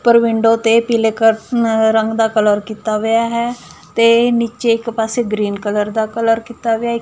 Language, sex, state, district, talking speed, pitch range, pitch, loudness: Punjabi, female, Punjab, Fazilka, 195 wpm, 220-235 Hz, 225 Hz, -15 LUFS